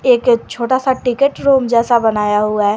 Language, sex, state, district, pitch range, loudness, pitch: Hindi, female, Jharkhand, Garhwa, 220-275 Hz, -14 LUFS, 245 Hz